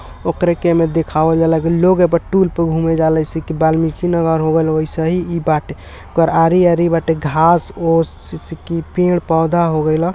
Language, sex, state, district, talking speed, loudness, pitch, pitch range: Hindi, male, Bihar, East Champaran, 120 wpm, -15 LUFS, 165 Hz, 160-170 Hz